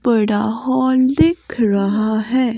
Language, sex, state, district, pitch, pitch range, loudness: Hindi, female, Himachal Pradesh, Shimla, 230 Hz, 215-260 Hz, -16 LUFS